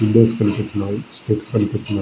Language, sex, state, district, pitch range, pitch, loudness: Telugu, male, Andhra Pradesh, Srikakulam, 105-110 Hz, 105 Hz, -20 LUFS